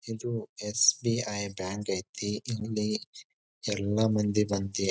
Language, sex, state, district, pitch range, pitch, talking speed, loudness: Kannada, male, Karnataka, Bijapur, 100-110 Hz, 105 Hz, 110 wpm, -30 LUFS